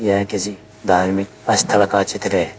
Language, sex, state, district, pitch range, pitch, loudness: Hindi, male, Uttar Pradesh, Saharanpur, 95-105 Hz, 100 Hz, -18 LUFS